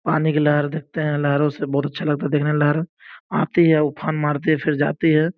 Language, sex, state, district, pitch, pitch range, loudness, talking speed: Hindi, male, Uttar Pradesh, Gorakhpur, 150 Hz, 145-155 Hz, -20 LUFS, 245 wpm